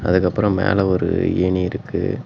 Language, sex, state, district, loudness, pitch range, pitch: Tamil, male, Tamil Nadu, Namakkal, -19 LUFS, 90-100 Hz, 95 Hz